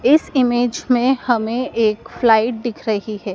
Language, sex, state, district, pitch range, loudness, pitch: Hindi, female, Madhya Pradesh, Dhar, 220-250 Hz, -18 LUFS, 235 Hz